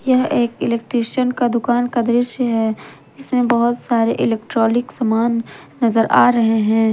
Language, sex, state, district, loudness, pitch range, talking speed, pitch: Hindi, female, Jharkhand, Ranchi, -17 LUFS, 225-245 Hz, 145 wpm, 235 Hz